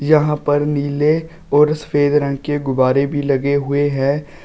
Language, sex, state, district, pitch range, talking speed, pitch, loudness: Hindi, male, Uttar Pradesh, Shamli, 140-150 Hz, 160 wpm, 145 Hz, -17 LUFS